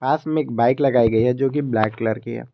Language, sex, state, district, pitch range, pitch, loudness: Hindi, male, Jharkhand, Garhwa, 115-140 Hz, 120 Hz, -20 LUFS